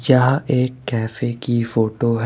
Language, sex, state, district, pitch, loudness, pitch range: Hindi, male, Rajasthan, Jaipur, 120 Hz, -19 LUFS, 115-130 Hz